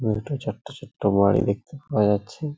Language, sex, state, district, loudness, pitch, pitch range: Bengali, male, West Bengal, Purulia, -23 LUFS, 110 Hz, 105-140 Hz